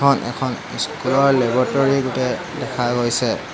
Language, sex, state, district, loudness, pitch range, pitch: Assamese, male, Assam, Hailakandi, -19 LUFS, 120-135 Hz, 130 Hz